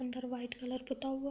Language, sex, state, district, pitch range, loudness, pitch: Hindi, female, Uttar Pradesh, Deoria, 250-265 Hz, -40 LUFS, 255 Hz